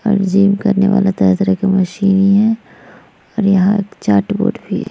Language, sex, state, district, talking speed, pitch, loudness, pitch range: Hindi, female, Bihar, Vaishali, 185 wpm, 200 Hz, -14 LUFS, 190-205 Hz